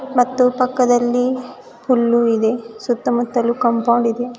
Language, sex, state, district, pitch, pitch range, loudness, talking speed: Kannada, female, Karnataka, Bidar, 240 Hz, 235-250 Hz, -17 LUFS, 110 wpm